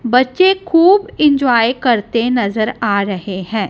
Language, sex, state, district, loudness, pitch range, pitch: Hindi, female, Punjab, Kapurthala, -14 LUFS, 215-295 Hz, 240 Hz